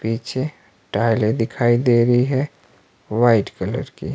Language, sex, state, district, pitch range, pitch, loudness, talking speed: Hindi, male, Himachal Pradesh, Shimla, 110-125 Hz, 120 Hz, -19 LUFS, 130 wpm